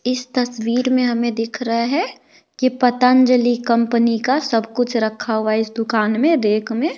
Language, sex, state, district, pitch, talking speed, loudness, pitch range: Hindi, female, Bihar, West Champaran, 240 Hz, 180 wpm, -18 LUFS, 225-255 Hz